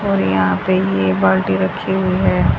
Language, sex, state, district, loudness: Hindi, female, Haryana, Rohtak, -16 LUFS